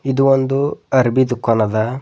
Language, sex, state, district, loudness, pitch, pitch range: Kannada, male, Karnataka, Bidar, -16 LUFS, 130 Hz, 115-135 Hz